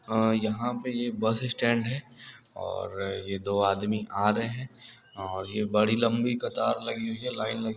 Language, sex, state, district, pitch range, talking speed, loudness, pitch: Hindi, male, Uttar Pradesh, Hamirpur, 105-120 Hz, 185 wpm, -29 LUFS, 110 Hz